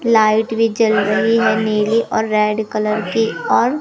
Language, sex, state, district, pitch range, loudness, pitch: Hindi, female, Madhya Pradesh, Umaria, 215-225 Hz, -16 LUFS, 220 Hz